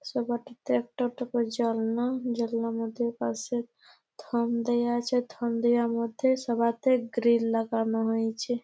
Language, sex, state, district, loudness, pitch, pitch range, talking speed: Bengali, female, West Bengal, Malda, -28 LUFS, 235 Hz, 230-245 Hz, 125 wpm